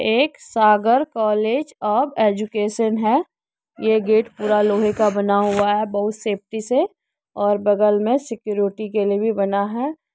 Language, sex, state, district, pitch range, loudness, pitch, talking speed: Hindi, female, Uttar Pradesh, Jyotiba Phule Nagar, 205-230 Hz, -19 LUFS, 215 Hz, 160 wpm